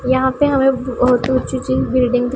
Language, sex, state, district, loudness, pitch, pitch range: Hindi, female, Punjab, Pathankot, -16 LUFS, 255 Hz, 250-260 Hz